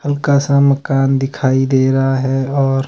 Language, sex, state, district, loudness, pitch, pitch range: Hindi, male, Himachal Pradesh, Shimla, -14 LUFS, 135 Hz, 135-140 Hz